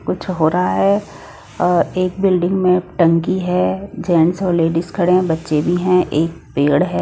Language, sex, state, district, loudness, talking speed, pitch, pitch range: Hindi, female, Odisha, Nuapada, -16 LUFS, 180 wpm, 175 Hz, 165-185 Hz